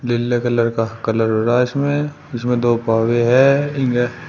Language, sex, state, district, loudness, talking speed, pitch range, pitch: Hindi, male, Uttar Pradesh, Shamli, -17 LUFS, 180 wpm, 115-130 Hz, 120 Hz